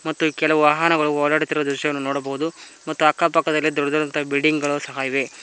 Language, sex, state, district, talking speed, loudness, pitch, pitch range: Kannada, male, Karnataka, Koppal, 165 wpm, -20 LUFS, 150 Hz, 145-155 Hz